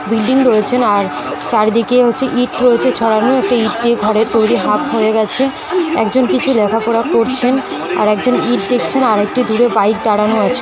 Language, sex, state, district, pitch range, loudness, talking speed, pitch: Bengali, female, West Bengal, North 24 Parganas, 220-255 Hz, -13 LUFS, 165 wpm, 235 Hz